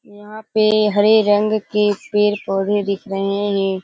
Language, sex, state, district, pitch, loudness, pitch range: Hindi, female, Bihar, Kishanganj, 205 Hz, -17 LUFS, 200-210 Hz